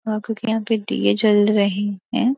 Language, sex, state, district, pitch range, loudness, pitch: Hindi, female, Uttar Pradesh, Gorakhpur, 205-225 Hz, -19 LUFS, 215 Hz